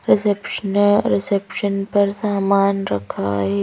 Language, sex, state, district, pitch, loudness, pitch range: Hindi, female, Madhya Pradesh, Bhopal, 200 Hz, -19 LUFS, 195-205 Hz